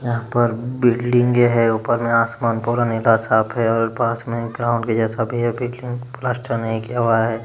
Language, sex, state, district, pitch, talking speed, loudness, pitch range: Hindi, male, Uttar Pradesh, Jalaun, 115 Hz, 210 wpm, -19 LUFS, 115-120 Hz